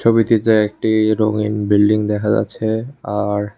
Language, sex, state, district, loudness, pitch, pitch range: Bengali, male, Tripura, West Tripura, -17 LUFS, 105 Hz, 105-110 Hz